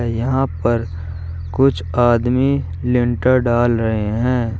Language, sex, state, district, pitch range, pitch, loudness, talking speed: Hindi, male, Uttar Pradesh, Shamli, 110-125 Hz, 120 Hz, -17 LUFS, 105 wpm